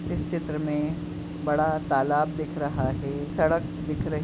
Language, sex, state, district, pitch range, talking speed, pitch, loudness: Hindi, male, Uttar Pradesh, Jyotiba Phule Nagar, 145-155 Hz, 170 wpm, 150 Hz, -27 LUFS